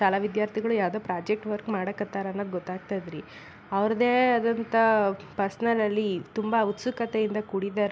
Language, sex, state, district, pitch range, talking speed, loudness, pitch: Kannada, female, Karnataka, Belgaum, 195-225 Hz, 135 wpm, -27 LUFS, 210 Hz